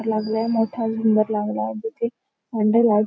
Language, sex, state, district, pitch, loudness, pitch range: Marathi, female, Maharashtra, Nagpur, 220 Hz, -22 LUFS, 215-225 Hz